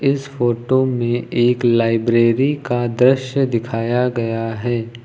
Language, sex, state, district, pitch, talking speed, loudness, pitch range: Hindi, male, Uttar Pradesh, Lucknow, 120 Hz, 120 wpm, -18 LUFS, 115-130 Hz